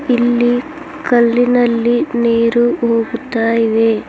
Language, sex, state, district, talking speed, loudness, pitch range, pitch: Kannada, female, Karnataka, Bidar, 75 wpm, -14 LUFS, 230-245 Hz, 240 Hz